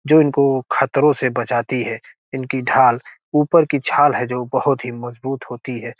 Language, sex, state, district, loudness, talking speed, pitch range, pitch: Hindi, male, Bihar, Gopalganj, -18 LUFS, 180 wpm, 120-140 Hz, 130 Hz